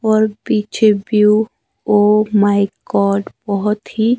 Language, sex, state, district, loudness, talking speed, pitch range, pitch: Hindi, male, Himachal Pradesh, Shimla, -15 LUFS, 115 wpm, 205-220 Hz, 210 Hz